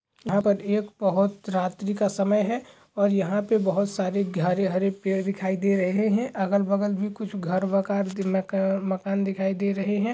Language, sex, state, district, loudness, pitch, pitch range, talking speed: Hindi, male, Uttar Pradesh, Hamirpur, -25 LUFS, 200 Hz, 190-205 Hz, 190 wpm